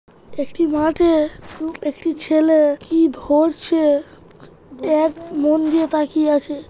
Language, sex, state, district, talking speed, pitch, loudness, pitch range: Bengali, male, West Bengal, Jhargram, 105 wpm, 310 Hz, -18 LUFS, 295-320 Hz